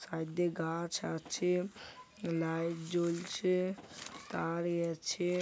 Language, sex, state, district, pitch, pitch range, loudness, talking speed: Bengali, male, West Bengal, Kolkata, 170 Hz, 165-180 Hz, -36 LUFS, 100 wpm